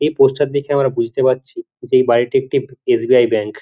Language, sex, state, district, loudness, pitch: Bengali, male, West Bengal, Jhargram, -16 LUFS, 145 Hz